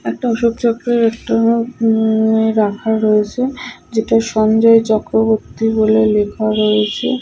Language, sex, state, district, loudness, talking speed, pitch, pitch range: Bengali, female, West Bengal, Purulia, -15 LUFS, 100 wpm, 220 Hz, 215-230 Hz